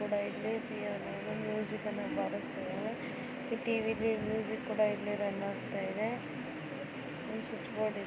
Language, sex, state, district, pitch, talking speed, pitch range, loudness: Kannada, female, Karnataka, Mysore, 215 Hz, 95 wpm, 210-225 Hz, -37 LUFS